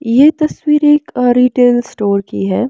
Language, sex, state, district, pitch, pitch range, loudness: Hindi, female, Bihar, West Champaran, 250 Hz, 230-295 Hz, -12 LUFS